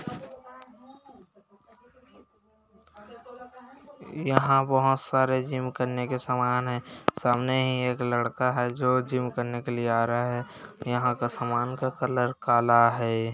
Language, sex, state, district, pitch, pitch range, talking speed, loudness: Hindi, male, Uttarakhand, Uttarkashi, 125 Hz, 120-185 Hz, 125 wpm, -26 LUFS